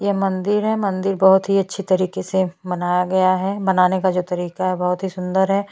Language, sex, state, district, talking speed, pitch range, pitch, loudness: Hindi, female, Chhattisgarh, Bastar, 220 wpm, 180-195 Hz, 190 Hz, -19 LUFS